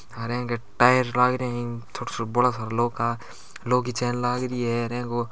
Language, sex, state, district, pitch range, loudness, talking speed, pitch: Marwari, male, Rajasthan, Churu, 120-125 Hz, -25 LUFS, 215 wpm, 120 Hz